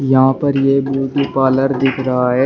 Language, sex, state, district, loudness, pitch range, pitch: Hindi, male, Uttar Pradesh, Shamli, -15 LUFS, 130-135 Hz, 135 Hz